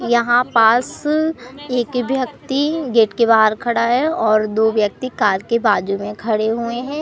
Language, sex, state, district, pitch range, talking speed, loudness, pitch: Hindi, male, Madhya Pradesh, Katni, 220-260 Hz, 160 wpm, -17 LUFS, 235 Hz